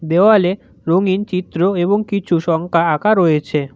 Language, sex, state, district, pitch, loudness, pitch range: Bengali, male, West Bengal, Cooch Behar, 180 Hz, -16 LUFS, 165-200 Hz